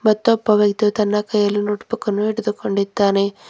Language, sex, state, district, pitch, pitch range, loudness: Kannada, female, Karnataka, Bidar, 210 Hz, 205-215 Hz, -18 LUFS